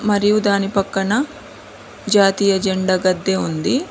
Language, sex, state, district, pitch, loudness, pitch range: Telugu, female, Telangana, Mahabubabad, 200 Hz, -17 LUFS, 190-210 Hz